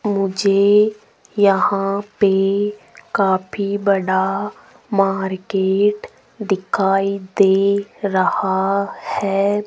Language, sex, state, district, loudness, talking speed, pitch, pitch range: Hindi, female, Rajasthan, Jaipur, -18 LUFS, 60 wpm, 195 Hz, 195-205 Hz